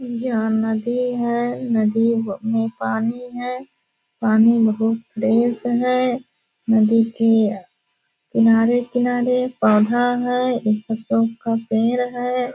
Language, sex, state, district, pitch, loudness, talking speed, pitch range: Hindi, female, Bihar, Purnia, 230 Hz, -19 LUFS, 110 wpm, 225-245 Hz